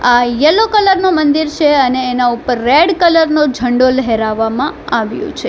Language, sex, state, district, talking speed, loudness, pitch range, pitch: Gujarati, female, Gujarat, Valsad, 175 wpm, -12 LUFS, 245-315 Hz, 275 Hz